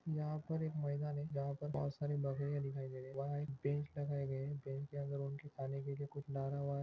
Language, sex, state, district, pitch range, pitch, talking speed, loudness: Hindi, male, Maharashtra, Pune, 140-145 Hz, 140 Hz, 265 wpm, -42 LUFS